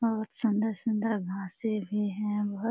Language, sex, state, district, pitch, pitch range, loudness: Hindi, female, Bihar, Jamui, 210 Hz, 205-220 Hz, -31 LUFS